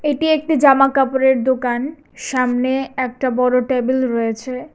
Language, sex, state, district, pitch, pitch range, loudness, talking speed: Bengali, female, Tripura, West Tripura, 260 Hz, 250-270 Hz, -17 LUFS, 115 wpm